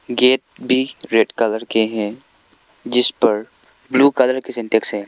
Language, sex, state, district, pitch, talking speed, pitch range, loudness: Hindi, male, Arunachal Pradesh, Lower Dibang Valley, 120 Hz, 155 wpm, 110-130 Hz, -18 LUFS